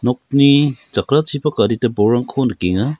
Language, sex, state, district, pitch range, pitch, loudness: Garo, male, Meghalaya, West Garo Hills, 115-145 Hz, 130 Hz, -16 LUFS